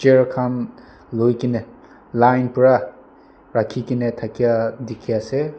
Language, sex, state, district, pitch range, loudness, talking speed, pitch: Nagamese, male, Nagaland, Dimapur, 115-130 Hz, -20 LUFS, 140 wpm, 120 Hz